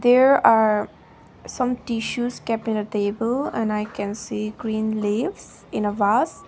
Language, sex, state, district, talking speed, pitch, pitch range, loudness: English, female, Nagaland, Dimapur, 155 wpm, 220 Hz, 210-240 Hz, -22 LUFS